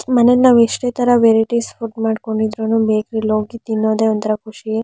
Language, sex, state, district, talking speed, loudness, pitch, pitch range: Kannada, male, Karnataka, Mysore, 175 wpm, -16 LUFS, 225 Hz, 220-235 Hz